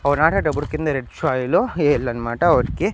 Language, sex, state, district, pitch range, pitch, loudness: Telugu, male, Andhra Pradesh, Annamaya, 130-160 Hz, 150 Hz, -20 LUFS